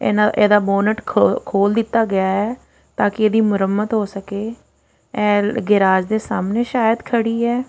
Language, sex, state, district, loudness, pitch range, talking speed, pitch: Punjabi, female, Punjab, Fazilka, -18 LUFS, 200-225 Hz, 155 wpm, 210 Hz